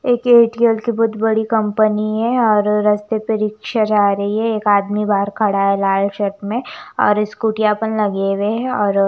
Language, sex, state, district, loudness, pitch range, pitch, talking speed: Hindi, female, Chandigarh, Chandigarh, -16 LUFS, 205-225 Hz, 215 Hz, 200 wpm